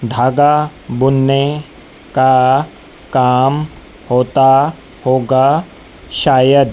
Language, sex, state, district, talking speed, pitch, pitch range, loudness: Hindi, female, Madhya Pradesh, Dhar, 60 wpm, 130 Hz, 125-140 Hz, -13 LUFS